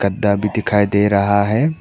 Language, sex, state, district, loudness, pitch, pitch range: Hindi, male, Arunachal Pradesh, Papum Pare, -16 LUFS, 105 Hz, 100-105 Hz